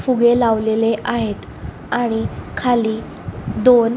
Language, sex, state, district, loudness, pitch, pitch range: Marathi, female, Maharashtra, Solapur, -18 LUFS, 235 Hz, 225-240 Hz